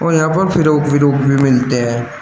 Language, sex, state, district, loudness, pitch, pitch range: Hindi, male, Uttar Pradesh, Shamli, -13 LUFS, 145 Hz, 125-155 Hz